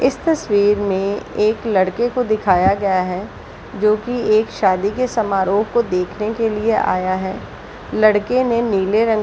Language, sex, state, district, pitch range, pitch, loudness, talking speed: Hindi, female, Chhattisgarh, Balrampur, 195-230 Hz, 210 Hz, -18 LUFS, 160 wpm